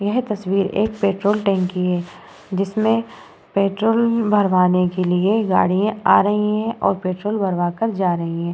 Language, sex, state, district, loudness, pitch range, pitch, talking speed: Hindi, female, Bihar, Vaishali, -19 LUFS, 185-215 Hz, 195 Hz, 125 wpm